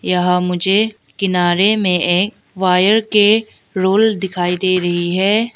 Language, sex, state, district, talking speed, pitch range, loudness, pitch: Hindi, female, Arunachal Pradesh, Lower Dibang Valley, 130 wpm, 180-210 Hz, -15 LUFS, 190 Hz